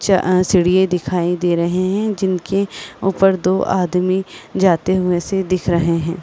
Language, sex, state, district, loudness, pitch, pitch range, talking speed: Hindi, female, Chhattisgarh, Rajnandgaon, -17 LUFS, 185 Hz, 175-190 Hz, 165 wpm